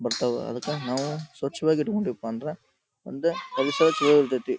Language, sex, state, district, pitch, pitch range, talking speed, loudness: Kannada, male, Karnataka, Dharwad, 150 Hz, 135-160 Hz, 145 wpm, -25 LUFS